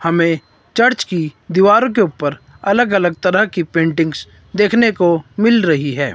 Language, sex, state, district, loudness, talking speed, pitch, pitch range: Hindi, male, Himachal Pradesh, Shimla, -15 LUFS, 155 wpm, 175 Hz, 160-210 Hz